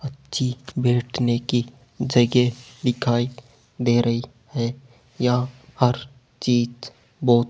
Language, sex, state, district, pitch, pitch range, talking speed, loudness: Hindi, male, Rajasthan, Jaipur, 125 Hz, 120-125 Hz, 95 wpm, -23 LUFS